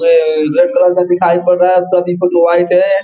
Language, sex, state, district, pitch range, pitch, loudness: Hindi, male, Bihar, Gopalganj, 175-195 Hz, 180 Hz, -11 LUFS